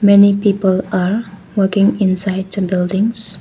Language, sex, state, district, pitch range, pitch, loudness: English, female, Arunachal Pradesh, Papum Pare, 190-205 Hz, 195 Hz, -15 LUFS